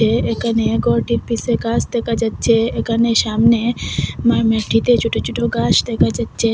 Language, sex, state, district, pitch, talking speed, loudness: Bengali, female, Assam, Hailakandi, 225 Hz, 130 wpm, -17 LUFS